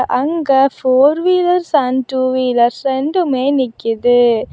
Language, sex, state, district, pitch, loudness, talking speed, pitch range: Tamil, female, Tamil Nadu, Kanyakumari, 265 Hz, -14 LUFS, 105 wpm, 250-285 Hz